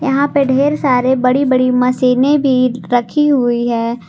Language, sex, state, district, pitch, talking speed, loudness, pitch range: Hindi, female, Jharkhand, Garhwa, 255 Hz, 160 wpm, -13 LUFS, 245-275 Hz